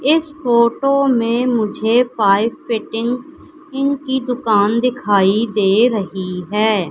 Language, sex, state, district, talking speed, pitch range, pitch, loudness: Hindi, female, Madhya Pradesh, Katni, 105 wpm, 210-260 Hz, 235 Hz, -16 LUFS